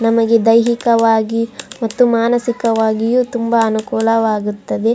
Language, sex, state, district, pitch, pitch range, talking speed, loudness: Kannada, female, Karnataka, Raichur, 230 Hz, 225-235 Hz, 110 wpm, -15 LUFS